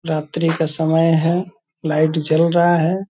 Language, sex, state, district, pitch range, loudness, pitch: Hindi, male, Bihar, Purnia, 160-170 Hz, -17 LUFS, 165 Hz